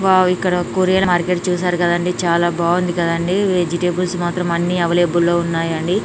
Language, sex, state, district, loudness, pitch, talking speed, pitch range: Telugu, female, Telangana, Nalgonda, -17 LUFS, 175 Hz, 170 wpm, 170-180 Hz